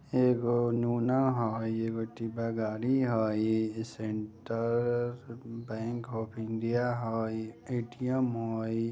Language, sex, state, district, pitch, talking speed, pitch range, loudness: Bajjika, male, Bihar, Vaishali, 115 Hz, 95 wpm, 110-120 Hz, -32 LUFS